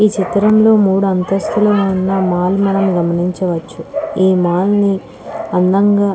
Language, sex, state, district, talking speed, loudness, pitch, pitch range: Telugu, female, Andhra Pradesh, Krishna, 135 wpm, -14 LUFS, 195 Hz, 180-205 Hz